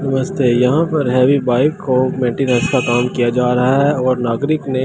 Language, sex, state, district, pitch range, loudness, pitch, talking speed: Hindi, male, Delhi, New Delhi, 125-140 Hz, -15 LUFS, 130 Hz, 210 wpm